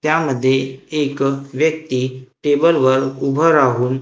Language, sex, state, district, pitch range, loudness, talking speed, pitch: Marathi, male, Maharashtra, Gondia, 130-155 Hz, -17 LUFS, 90 wpm, 135 Hz